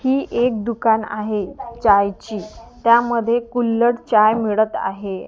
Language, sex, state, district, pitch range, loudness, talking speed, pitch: Marathi, female, Maharashtra, Gondia, 210-235 Hz, -18 LUFS, 125 wpm, 225 Hz